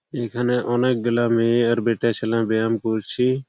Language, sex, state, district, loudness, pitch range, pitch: Bengali, male, West Bengal, Malda, -21 LUFS, 115-125 Hz, 120 Hz